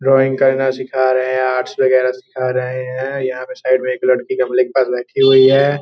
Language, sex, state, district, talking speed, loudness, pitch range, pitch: Hindi, male, Bihar, Gopalganj, 215 wpm, -15 LUFS, 130-135 Hz, 130 Hz